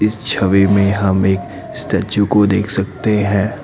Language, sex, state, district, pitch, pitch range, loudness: Hindi, male, Assam, Kamrup Metropolitan, 100 Hz, 100-105 Hz, -15 LUFS